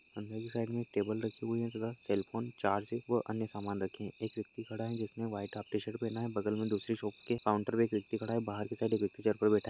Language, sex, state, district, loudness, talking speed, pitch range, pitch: Hindi, male, Bihar, Lakhisarai, -37 LUFS, 295 wpm, 105-115 Hz, 110 Hz